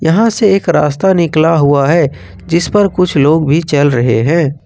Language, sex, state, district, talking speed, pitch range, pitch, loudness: Hindi, male, Jharkhand, Ranchi, 195 wpm, 145-180 Hz, 165 Hz, -11 LUFS